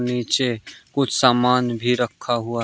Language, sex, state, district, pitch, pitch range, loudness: Hindi, male, Uttar Pradesh, Shamli, 125 Hz, 120-125 Hz, -20 LUFS